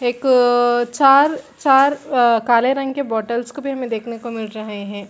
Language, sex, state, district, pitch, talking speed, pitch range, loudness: Hindi, female, Chhattisgarh, Bilaspur, 245 Hz, 190 wpm, 230-275 Hz, -17 LUFS